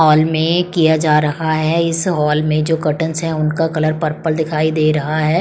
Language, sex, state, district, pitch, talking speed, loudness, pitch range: Hindi, female, Chandigarh, Chandigarh, 160 Hz, 210 wpm, -16 LUFS, 155-160 Hz